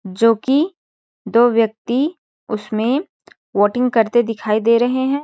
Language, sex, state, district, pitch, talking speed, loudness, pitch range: Hindi, female, Chhattisgarh, Balrampur, 235 Hz, 125 wpm, -17 LUFS, 220-260 Hz